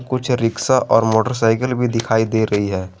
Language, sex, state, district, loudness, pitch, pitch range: Hindi, male, Jharkhand, Garhwa, -17 LUFS, 115 Hz, 110-125 Hz